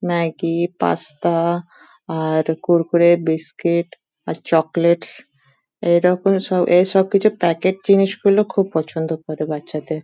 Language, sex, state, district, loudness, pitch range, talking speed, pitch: Bengali, female, West Bengal, Dakshin Dinajpur, -18 LUFS, 160-185 Hz, 120 wpm, 170 Hz